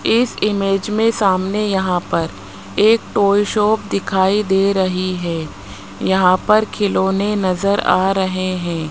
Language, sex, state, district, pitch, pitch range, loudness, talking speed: Hindi, male, Rajasthan, Jaipur, 190 Hz, 180-205 Hz, -17 LUFS, 135 wpm